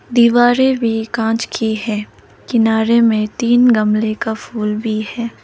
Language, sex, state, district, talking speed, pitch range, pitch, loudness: Hindi, female, Arunachal Pradesh, Lower Dibang Valley, 145 wpm, 220-235 Hz, 225 Hz, -15 LUFS